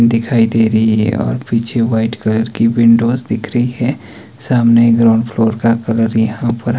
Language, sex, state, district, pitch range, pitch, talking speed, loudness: Hindi, male, Himachal Pradesh, Shimla, 110-115 Hz, 115 Hz, 175 wpm, -13 LUFS